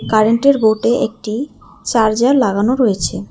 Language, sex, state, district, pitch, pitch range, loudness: Bengali, female, West Bengal, Alipurduar, 225 Hz, 215-250 Hz, -15 LUFS